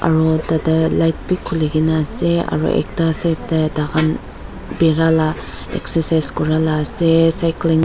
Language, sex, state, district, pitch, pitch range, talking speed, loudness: Nagamese, female, Nagaland, Dimapur, 160 Hz, 155-165 Hz, 140 wpm, -16 LUFS